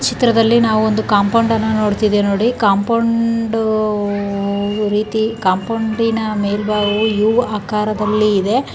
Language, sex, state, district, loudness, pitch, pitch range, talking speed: Kannada, female, Karnataka, Mysore, -16 LUFS, 215 Hz, 205-225 Hz, 90 wpm